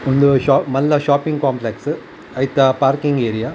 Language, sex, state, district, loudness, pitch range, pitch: Tulu, male, Karnataka, Dakshina Kannada, -16 LUFS, 130-145 Hz, 135 Hz